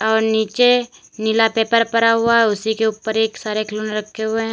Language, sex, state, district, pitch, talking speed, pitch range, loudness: Hindi, female, Uttar Pradesh, Lalitpur, 220 Hz, 210 wpm, 220-230 Hz, -17 LUFS